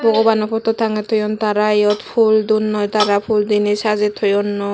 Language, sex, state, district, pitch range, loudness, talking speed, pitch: Chakma, female, Tripura, West Tripura, 210-220 Hz, -16 LUFS, 165 wpm, 210 Hz